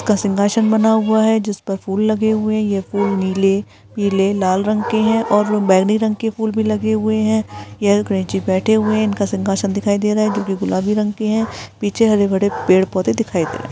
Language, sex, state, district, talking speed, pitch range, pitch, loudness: Hindi, female, Bihar, Jamui, 225 wpm, 195-220 Hz, 210 Hz, -17 LUFS